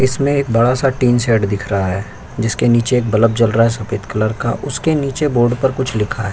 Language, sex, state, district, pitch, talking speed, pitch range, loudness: Hindi, male, Uttar Pradesh, Jyotiba Phule Nagar, 115 Hz, 245 wpm, 110-130 Hz, -16 LUFS